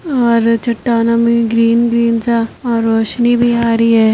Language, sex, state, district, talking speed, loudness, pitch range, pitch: Hindi, female, Uttar Pradesh, Etah, 175 wpm, -13 LUFS, 230-235 Hz, 230 Hz